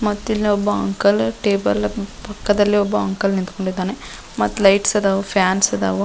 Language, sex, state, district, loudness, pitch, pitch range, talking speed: Kannada, female, Karnataka, Dharwad, -18 LUFS, 195 Hz, 185-205 Hz, 130 wpm